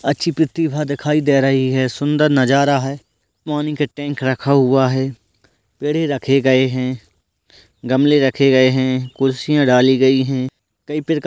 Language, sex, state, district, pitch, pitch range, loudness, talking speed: Hindi, male, Bihar, Purnia, 135 Hz, 130-145 Hz, -16 LUFS, 165 wpm